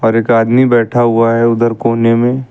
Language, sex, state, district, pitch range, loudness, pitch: Hindi, male, Uttar Pradesh, Lucknow, 115-120 Hz, -11 LUFS, 115 Hz